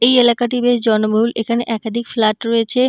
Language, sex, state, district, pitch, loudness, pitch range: Bengali, female, West Bengal, North 24 Parganas, 235 Hz, -16 LUFS, 225-240 Hz